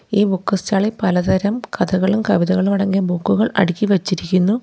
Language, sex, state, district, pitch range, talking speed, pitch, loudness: Malayalam, female, Kerala, Kollam, 185-205 Hz, 140 wpm, 195 Hz, -18 LUFS